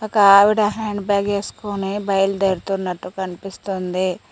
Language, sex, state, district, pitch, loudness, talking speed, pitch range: Telugu, female, Telangana, Mahabubabad, 195 Hz, -19 LUFS, 95 wpm, 190-205 Hz